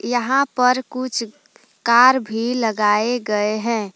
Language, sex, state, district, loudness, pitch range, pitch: Hindi, female, Jharkhand, Palamu, -18 LUFS, 215-255 Hz, 235 Hz